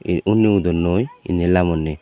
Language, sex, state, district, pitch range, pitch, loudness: Chakma, male, Tripura, Dhalai, 85-105 Hz, 90 Hz, -18 LUFS